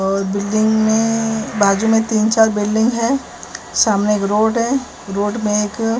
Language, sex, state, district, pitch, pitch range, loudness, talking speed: Hindi, female, Maharashtra, Mumbai Suburban, 220 Hz, 210-225 Hz, -16 LUFS, 170 wpm